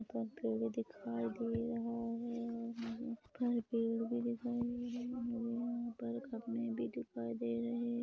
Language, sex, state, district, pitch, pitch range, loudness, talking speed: Hindi, female, Chhattisgarh, Rajnandgaon, 235 Hz, 230-240 Hz, -40 LUFS, 155 wpm